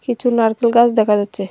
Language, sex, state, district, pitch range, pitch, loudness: Bengali, female, Tripura, Dhalai, 210-240 Hz, 230 Hz, -15 LUFS